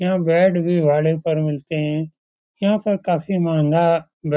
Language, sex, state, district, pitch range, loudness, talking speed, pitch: Hindi, male, Bihar, Supaul, 155-180 Hz, -19 LUFS, 150 wpm, 165 Hz